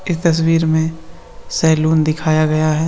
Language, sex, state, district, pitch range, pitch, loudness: Hindi, male, Andhra Pradesh, Visakhapatnam, 155-165 Hz, 160 Hz, -16 LUFS